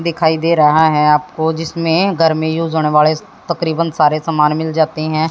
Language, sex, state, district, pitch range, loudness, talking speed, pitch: Hindi, female, Haryana, Jhajjar, 155-165 Hz, -14 LUFS, 180 wpm, 160 Hz